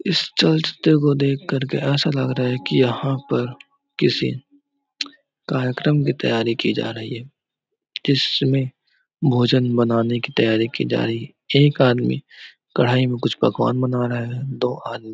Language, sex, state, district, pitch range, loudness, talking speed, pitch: Hindi, male, Chhattisgarh, Raigarh, 120-140 Hz, -20 LUFS, 160 wpm, 130 Hz